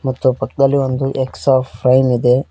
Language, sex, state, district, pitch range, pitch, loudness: Kannada, male, Karnataka, Koppal, 125-135 Hz, 130 Hz, -15 LUFS